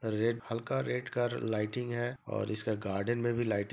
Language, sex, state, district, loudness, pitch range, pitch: Hindi, male, Jharkhand, Sahebganj, -34 LUFS, 105-120 Hz, 115 Hz